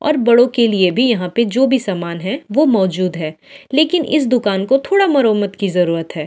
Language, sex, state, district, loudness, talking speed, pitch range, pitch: Hindi, female, Delhi, New Delhi, -15 LUFS, 220 wpm, 185-265 Hz, 225 Hz